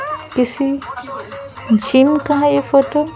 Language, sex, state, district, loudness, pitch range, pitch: Hindi, female, Bihar, Patna, -15 LUFS, 270-295 Hz, 280 Hz